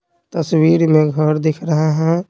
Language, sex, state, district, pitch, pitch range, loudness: Hindi, male, Bihar, Patna, 160 Hz, 155-170 Hz, -15 LUFS